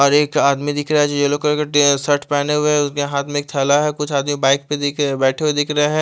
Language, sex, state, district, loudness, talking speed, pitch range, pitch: Hindi, male, Chandigarh, Chandigarh, -17 LUFS, 290 wpm, 140-150 Hz, 145 Hz